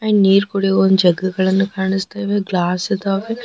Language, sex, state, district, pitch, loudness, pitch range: Kannada, female, Karnataka, Bidar, 195 Hz, -17 LUFS, 190-200 Hz